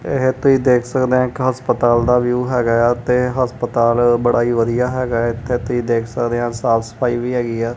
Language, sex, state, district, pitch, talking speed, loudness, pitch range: Punjabi, male, Punjab, Kapurthala, 120 Hz, 200 wpm, -17 LUFS, 120-125 Hz